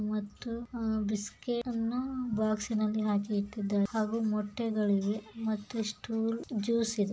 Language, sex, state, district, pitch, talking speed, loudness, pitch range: Kannada, female, Karnataka, Bijapur, 215 Hz, 95 wpm, -33 LUFS, 210-230 Hz